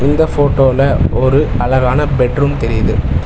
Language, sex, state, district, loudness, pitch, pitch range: Tamil, male, Tamil Nadu, Chennai, -13 LUFS, 130 Hz, 115-145 Hz